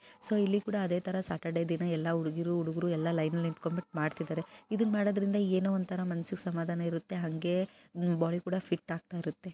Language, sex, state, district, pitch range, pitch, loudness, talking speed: Kannada, female, Karnataka, Bijapur, 165-190 Hz, 175 Hz, -33 LUFS, 155 wpm